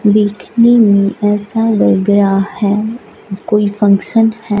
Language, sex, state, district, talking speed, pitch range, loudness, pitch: Hindi, female, Punjab, Fazilka, 115 wpm, 200-225 Hz, -12 LUFS, 205 Hz